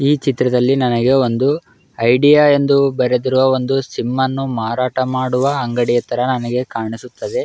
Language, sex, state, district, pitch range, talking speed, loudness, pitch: Kannada, male, Karnataka, Raichur, 125-135 Hz, 130 wpm, -16 LUFS, 130 Hz